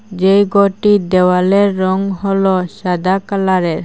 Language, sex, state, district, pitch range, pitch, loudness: Bengali, female, Assam, Hailakandi, 185-200 Hz, 190 Hz, -14 LUFS